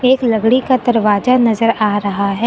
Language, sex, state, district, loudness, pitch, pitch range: Hindi, female, Uttar Pradesh, Lucknow, -14 LUFS, 230 Hz, 210-250 Hz